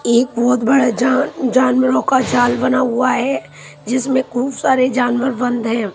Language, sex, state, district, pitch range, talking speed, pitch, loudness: Hindi, female, Punjab, Pathankot, 240-255 Hz, 160 wpm, 250 Hz, -16 LUFS